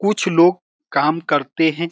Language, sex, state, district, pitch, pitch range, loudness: Hindi, male, Bihar, Saran, 170 Hz, 160-190 Hz, -18 LUFS